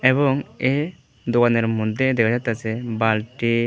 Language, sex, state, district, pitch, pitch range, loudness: Bengali, male, Tripura, West Tripura, 120 Hz, 115-130 Hz, -21 LUFS